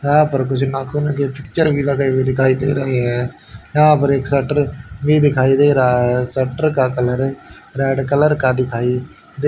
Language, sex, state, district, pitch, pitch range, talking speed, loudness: Hindi, male, Haryana, Rohtak, 135 Hz, 130-145 Hz, 190 wpm, -16 LUFS